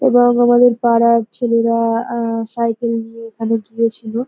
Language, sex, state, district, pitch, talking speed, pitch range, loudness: Bengali, female, West Bengal, North 24 Parganas, 230 Hz, 125 wpm, 230-240 Hz, -16 LUFS